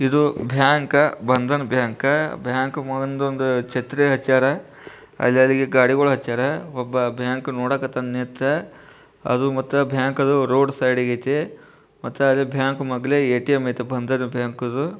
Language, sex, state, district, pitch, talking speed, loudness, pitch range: Kannada, male, Karnataka, Bijapur, 130 Hz, 135 wpm, -20 LUFS, 125-140 Hz